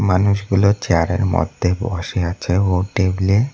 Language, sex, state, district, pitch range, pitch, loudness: Bengali, male, West Bengal, Cooch Behar, 90-100 Hz, 95 Hz, -18 LUFS